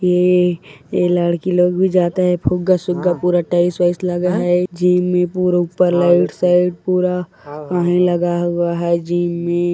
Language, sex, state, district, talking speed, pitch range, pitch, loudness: Chhattisgarhi, male, Chhattisgarh, Korba, 160 wpm, 175-180 Hz, 180 Hz, -16 LUFS